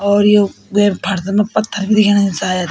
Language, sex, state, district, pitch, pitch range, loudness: Garhwali, female, Uttarakhand, Tehri Garhwal, 200 Hz, 195-205 Hz, -14 LUFS